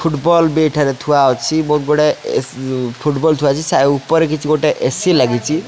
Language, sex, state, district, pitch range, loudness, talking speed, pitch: Odia, male, Odisha, Khordha, 135-160 Hz, -15 LUFS, 160 wpm, 150 Hz